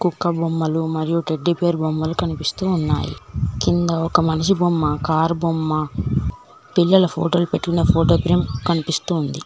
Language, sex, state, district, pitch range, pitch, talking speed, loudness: Telugu, female, Telangana, Mahabubabad, 155-175 Hz, 165 Hz, 120 wpm, -20 LUFS